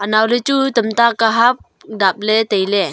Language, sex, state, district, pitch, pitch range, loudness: Wancho, female, Arunachal Pradesh, Longding, 220 Hz, 205-235 Hz, -15 LUFS